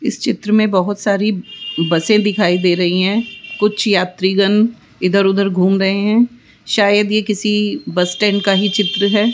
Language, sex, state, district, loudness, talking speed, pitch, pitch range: Hindi, female, Rajasthan, Jaipur, -15 LUFS, 175 wpm, 205 Hz, 190-215 Hz